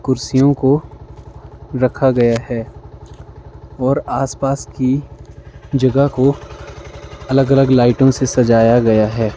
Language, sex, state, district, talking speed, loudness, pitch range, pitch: Hindi, male, Himachal Pradesh, Shimla, 100 wpm, -15 LUFS, 110-135 Hz, 125 Hz